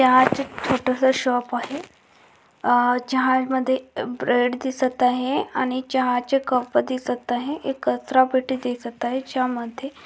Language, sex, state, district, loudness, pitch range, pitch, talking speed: Marathi, female, Maharashtra, Dhule, -22 LUFS, 245-260 Hz, 255 Hz, 155 wpm